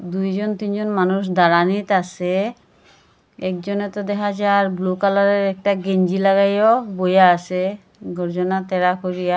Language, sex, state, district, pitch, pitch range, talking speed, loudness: Bengali, female, Assam, Hailakandi, 190 Hz, 185-200 Hz, 120 wpm, -19 LUFS